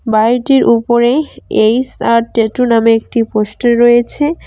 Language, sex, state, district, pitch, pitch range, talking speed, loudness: Bengali, female, West Bengal, Cooch Behar, 235 Hz, 225-250 Hz, 120 wpm, -12 LUFS